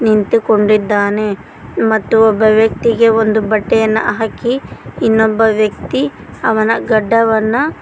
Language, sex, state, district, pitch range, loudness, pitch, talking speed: Kannada, female, Karnataka, Koppal, 215-225 Hz, -13 LUFS, 220 Hz, 85 wpm